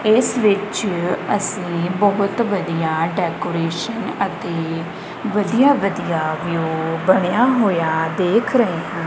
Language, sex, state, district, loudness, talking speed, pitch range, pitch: Punjabi, female, Punjab, Kapurthala, -19 LUFS, 100 wpm, 165-205 Hz, 180 Hz